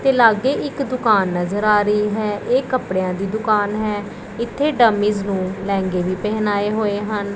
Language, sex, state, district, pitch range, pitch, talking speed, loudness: Punjabi, female, Punjab, Pathankot, 200-230 Hz, 210 Hz, 170 wpm, -19 LUFS